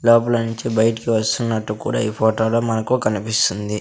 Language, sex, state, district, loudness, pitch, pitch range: Telugu, male, Andhra Pradesh, Sri Satya Sai, -19 LUFS, 110 Hz, 110-115 Hz